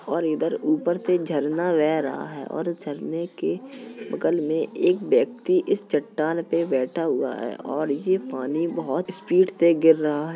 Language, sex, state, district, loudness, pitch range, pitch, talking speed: Hindi, female, Uttar Pradesh, Jalaun, -24 LUFS, 155-185 Hz, 165 Hz, 175 wpm